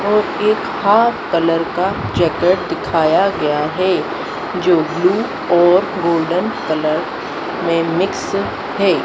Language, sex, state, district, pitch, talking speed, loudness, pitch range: Hindi, female, Madhya Pradesh, Dhar, 175 Hz, 115 wpm, -16 LUFS, 165-195 Hz